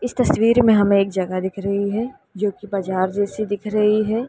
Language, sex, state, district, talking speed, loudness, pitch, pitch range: Hindi, female, Uttar Pradesh, Lalitpur, 225 wpm, -19 LUFS, 205 Hz, 195-220 Hz